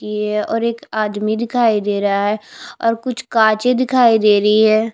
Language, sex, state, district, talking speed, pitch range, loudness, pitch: Hindi, female, Chhattisgarh, Bastar, 180 wpm, 210-230 Hz, -16 LUFS, 220 Hz